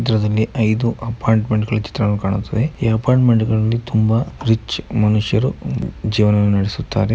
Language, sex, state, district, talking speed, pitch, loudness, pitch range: Kannada, male, Karnataka, Mysore, 120 wpm, 110 Hz, -18 LUFS, 105-115 Hz